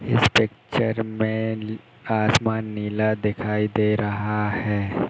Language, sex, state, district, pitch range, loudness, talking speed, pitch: Hindi, male, Uttar Pradesh, Hamirpur, 105-110 Hz, -23 LUFS, 120 wpm, 110 Hz